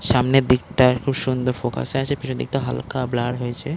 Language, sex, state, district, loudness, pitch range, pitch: Bengali, male, West Bengal, Dakshin Dinajpur, -21 LUFS, 125-135 Hz, 125 Hz